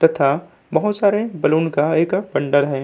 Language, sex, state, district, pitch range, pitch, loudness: Hindi, male, Uttar Pradesh, Budaun, 145-190 Hz, 160 Hz, -18 LUFS